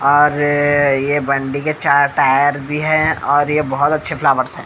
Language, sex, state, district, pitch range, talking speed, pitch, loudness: Hindi, male, Bihar, Katihar, 140-150 Hz, 180 wpm, 145 Hz, -15 LUFS